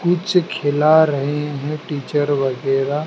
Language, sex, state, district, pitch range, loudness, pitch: Hindi, male, Madhya Pradesh, Dhar, 140-155 Hz, -18 LUFS, 145 Hz